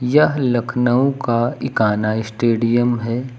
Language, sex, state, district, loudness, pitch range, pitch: Hindi, male, Uttar Pradesh, Lucknow, -18 LUFS, 115-130 Hz, 120 Hz